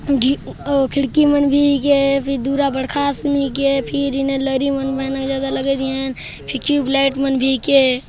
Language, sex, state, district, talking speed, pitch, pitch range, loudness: Hindi, male, Chhattisgarh, Jashpur, 155 wpm, 275 Hz, 270-280 Hz, -17 LUFS